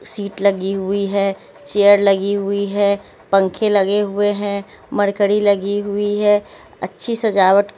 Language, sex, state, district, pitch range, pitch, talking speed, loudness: Hindi, female, Haryana, Jhajjar, 200-205 Hz, 200 Hz, 140 wpm, -17 LUFS